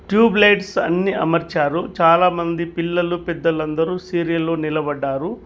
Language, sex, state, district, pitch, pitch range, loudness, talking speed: Telugu, male, Telangana, Mahabubabad, 170 Hz, 165-180 Hz, -18 LUFS, 110 wpm